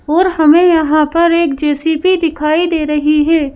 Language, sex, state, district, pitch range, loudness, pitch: Hindi, female, Madhya Pradesh, Bhopal, 300-335 Hz, -12 LUFS, 315 Hz